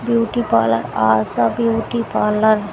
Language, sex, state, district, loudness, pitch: Hindi, female, Haryana, Jhajjar, -17 LUFS, 220 Hz